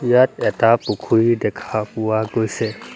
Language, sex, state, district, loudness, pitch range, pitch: Assamese, male, Assam, Sonitpur, -19 LUFS, 110-120 Hz, 115 Hz